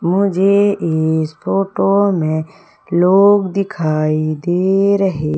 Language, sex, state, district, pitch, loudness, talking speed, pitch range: Hindi, female, Madhya Pradesh, Umaria, 185 Hz, -15 LUFS, 90 wpm, 160-195 Hz